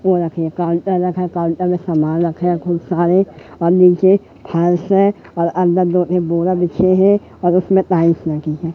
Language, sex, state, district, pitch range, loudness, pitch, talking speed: Hindi, male, Madhya Pradesh, Katni, 170-185 Hz, -16 LUFS, 175 Hz, 170 wpm